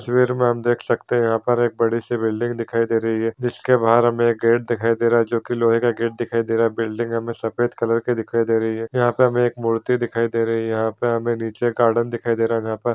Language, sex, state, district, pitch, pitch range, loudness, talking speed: Hindi, male, Bihar, Supaul, 115 Hz, 115-120 Hz, -20 LUFS, 300 wpm